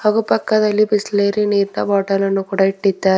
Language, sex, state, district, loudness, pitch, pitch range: Kannada, female, Karnataka, Bidar, -17 LUFS, 200 Hz, 195-210 Hz